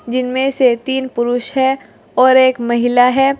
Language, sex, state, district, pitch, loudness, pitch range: Hindi, female, Uttar Pradesh, Saharanpur, 255 Hz, -14 LUFS, 245-265 Hz